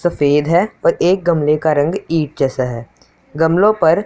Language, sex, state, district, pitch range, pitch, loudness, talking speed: Hindi, male, Punjab, Pathankot, 145-175 Hz, 160 Hz, -15 LUFS, 175 wpm